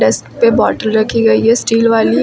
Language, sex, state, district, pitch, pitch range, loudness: Hindi, female, Uttar Pradesh, Lucknow, 225 Hz, 220-230 Hz, -12 LUFS